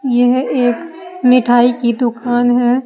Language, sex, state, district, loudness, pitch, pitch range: Hindi, female, Uttar Pradesh, Saharanpur, -13 LUFS, 245 Hz, 240-255 Hz